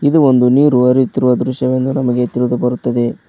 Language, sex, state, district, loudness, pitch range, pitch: Kannada, male, Karnataka, Koppal, -13 LUFS, 125-130 Hz, 125 Hz